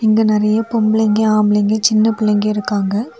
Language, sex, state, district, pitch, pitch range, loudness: Tamil, female, Tamil Nadu, Kanyakumari, 215 Hz, 210-220 Hz, -15 LUFS